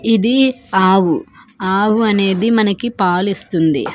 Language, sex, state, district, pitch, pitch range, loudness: Telugu, female, Andhra Pradesh, Manyam, 200 Hz, 190-225 Hz, -15 LUFS